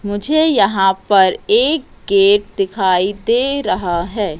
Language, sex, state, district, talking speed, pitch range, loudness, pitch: Hindi, female, Madhya Pradesh, Katni, 125 wpm, 195-255 Hz, -15 LUFS, 205 Hz